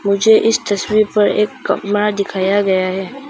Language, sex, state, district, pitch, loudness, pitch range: Hindi, female, Arunachal Pradesh, Papum Pare, 205 Hz, -15 LUFS, 200-215 Hz